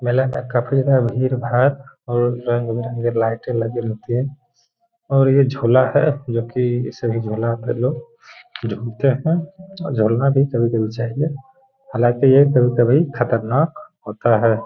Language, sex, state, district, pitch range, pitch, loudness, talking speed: Hindi, male, Bihar, Gaya, 115-140 Hz, 125 Hz, -19 LUFS, 150 wpm